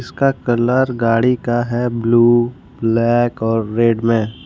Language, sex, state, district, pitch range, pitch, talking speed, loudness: Hindi, male, Jharkhand, Ranchi, 115-120 Hz, 120 Hz, 135 wpm, -16 LUFS